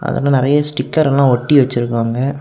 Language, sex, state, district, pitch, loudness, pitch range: Tamil, male, Tamil Nadu, Kanyakumari, 135 Hz, -14 LUFS, 125-140 Hz